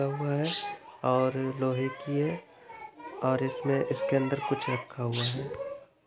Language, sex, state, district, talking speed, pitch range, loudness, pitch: Hindi, male, Chhattisgarh, Bilaspur, 150 wpm, 130-180 Hz, -30 LUFS, 140 Hz